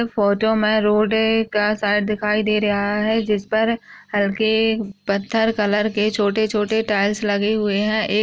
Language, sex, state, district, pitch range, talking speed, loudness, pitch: Hindi, female, Bihar, Begusarai, 205-220 Hz, 175 wpm, -19 LUFS, 210 Hz